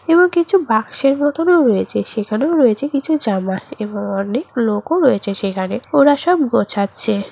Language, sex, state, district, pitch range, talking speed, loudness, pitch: Bengali, female, West Bengal, Purulia, 200-300 Hz, 140 wpm, -16 LUFS, 245 Hz